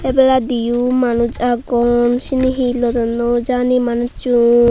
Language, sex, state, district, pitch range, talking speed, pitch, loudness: Chakma, female, Tripura, Unakoti, 240-250 Hz, 115 wpm, 245 Hz, -16 LUFS